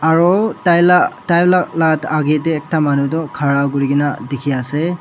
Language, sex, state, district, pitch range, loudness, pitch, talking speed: Nagamese, male, Nagaland, Dimapur, 140-170 Hz, -15 LUFS, 155 Hz, 145 wpm